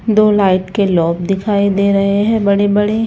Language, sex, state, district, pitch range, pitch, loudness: Hindi, female, Chhattisgarh, Raipur, 195-210 Hz, 200 Hz, -13 LUFS